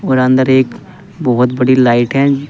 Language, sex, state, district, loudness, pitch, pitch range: Hindi, male, Uttar Pradesh, Saharanpur, -12 LUFS, 130 Hz, 125-135 Hz